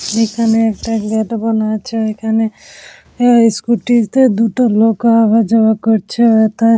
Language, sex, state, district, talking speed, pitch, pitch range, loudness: Bengali, female, West Bengal, Dakshin Dinajpur, 135 wpm, 225 Hz, 220-230 Hz, -13 LUFS